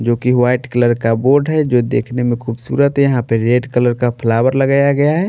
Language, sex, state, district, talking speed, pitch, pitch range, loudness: Hindi, male, Maharashtra, Washim, 240 wpm, 125 Hz, 120-140 Hz, -15 LUFS